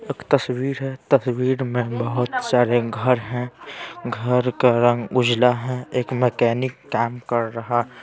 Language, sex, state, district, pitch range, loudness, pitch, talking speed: Hindi, male, Bihar, Patna, 120-125 Hz, -21 LUFS, 125 Hz, 140 wpm